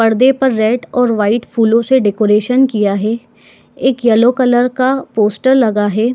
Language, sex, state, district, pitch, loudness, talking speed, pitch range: Hindi, female, Chhattisgarh, Bilaspur, 235 Hz, -13 LUFS, 165 wpm, 215-255 Hz